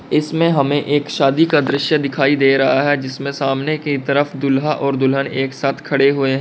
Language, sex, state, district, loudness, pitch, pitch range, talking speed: Hindi, male, Uttar Pradesh, Lalitpur, -16 LUFS, 140 Hz, 135-145 Hz, 205 wpm